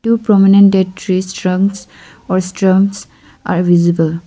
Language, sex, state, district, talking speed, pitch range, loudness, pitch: English, female, Arunachal Pradesh, Lower Dibang Valley, 110 wpm, 185-195 Hz, -13 LUFS, 190 Hz